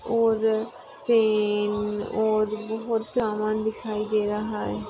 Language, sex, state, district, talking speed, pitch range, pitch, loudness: Hindi, female, Maharashtra, Aurangabad, 100 wpm, 210-220 Hz, 215 Hz, -25 LUFS